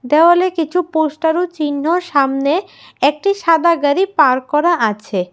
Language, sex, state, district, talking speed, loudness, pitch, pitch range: Bengali, female, Tripura, West Tripura, 135 wpm, -15 LUFS, 320 Hz, 285-345 Hz